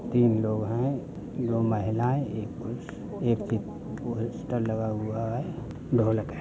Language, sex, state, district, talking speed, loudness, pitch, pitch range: Hindi, male, Uttar Pradesh, Budaun, 120 wpm, -29 LUFS, 115 Hz, 110-120 Hz